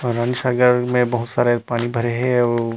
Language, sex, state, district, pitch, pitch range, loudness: Chhattisgarhi, male, Chhattisgarh, Rajnandgaon, 120 Hz, 120-125 Hz, -19 LUFS